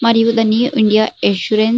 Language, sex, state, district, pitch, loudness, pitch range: Telugu, female, Andhra Pradesh, Srikakulam, 225 Hz, -14 LUFS, 215-230 Hz